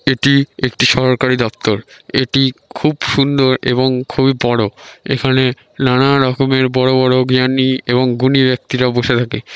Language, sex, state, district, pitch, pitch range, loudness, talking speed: Bengali, male, West Bengal, North 24 Parganas, 130 Hz, 125-135 Hz, -14 LUFS, 130 wpm